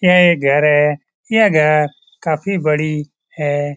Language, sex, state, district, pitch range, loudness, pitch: Hindi, male, Bihar, Lakhisarai, 145-170 Hz, -15 LUFS, 150 Hz